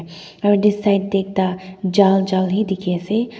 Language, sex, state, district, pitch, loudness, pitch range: Nagamese, female, Nagaland, Dimapur, 195 Hz, -18 LUFS, 185-205 Hz